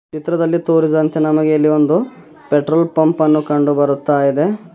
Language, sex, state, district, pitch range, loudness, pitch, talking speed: Kannada, male, Karnataka, Bidar, 150-165 Hz, -15 LUFS, 155 Hz, 115 wpm